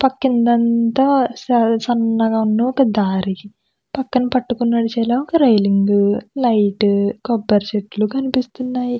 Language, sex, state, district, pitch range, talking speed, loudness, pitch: Telugu, female, Andhra Pradesh, Krishna, 210-255 Hz, 95 wpm, -17 LUFS, 235 Hz